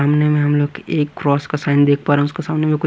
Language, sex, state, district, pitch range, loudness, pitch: Hindi, male, Punjab, Pathankot, 145-150 Hz, -17 LUFS, 145 Hz